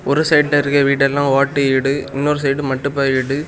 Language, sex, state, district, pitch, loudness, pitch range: Tamil, male, Tamil Nadu, Kanyakumari, 140 Hz, -16 LUFS, 135-145 Hz